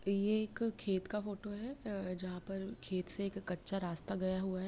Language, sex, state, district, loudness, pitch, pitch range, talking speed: Hindi, female, Bihar, Jamui, -38 LUFS, 195 Hz, 185-210 Hz, 205 wpm